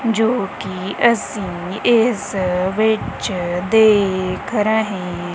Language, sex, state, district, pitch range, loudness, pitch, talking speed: Punjabi, female, Punjab, Kapurthala, 185-220 Hz, -18 LUFS, 205 Hz, 80 wpm